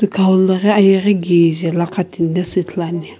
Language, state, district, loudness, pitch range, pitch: Sumi, Nagaland, Kohima, -15 LUFS, 170-195 Hz, 185 Hz